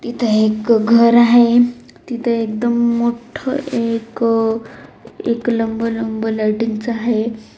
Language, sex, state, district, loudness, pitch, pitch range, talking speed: Marathi, female, Maharashtra, Dhule, -16 LUFS, 235 Hz, 225-240 Hz, 110 wpm